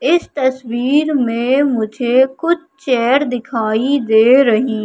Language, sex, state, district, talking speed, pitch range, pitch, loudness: Hindi, female, Madhya Pradesh, Katni, 110 wpm, 235-275 Hz, 255 Hz, -15 LUFS